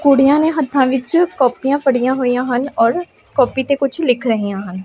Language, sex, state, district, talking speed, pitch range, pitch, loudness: Punjabi, female, Punjab, Pathankot, 185 wpm, 245-280 Hz, 265 Hz, -16 LUFS